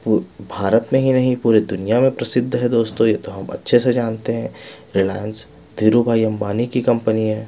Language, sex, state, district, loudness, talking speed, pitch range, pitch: Hindi, male, Bihar, West Champaran, -18 LUFS, 185 wpm, 110-120 Hz, 115 Hz